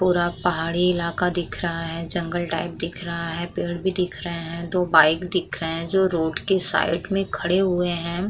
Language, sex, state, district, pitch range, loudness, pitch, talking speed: Hindi, female, Uttar Pradesh, Muzaffarnagar, 165-180 Hz, -23 LUFS, 175 Hz, 215 wpm